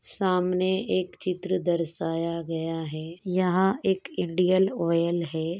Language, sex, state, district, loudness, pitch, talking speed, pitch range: Hindi, female, Uttar Pradesh, Hamirpur, -26 LUFS, 180 Hz, 120 wpm, 165-185 Hz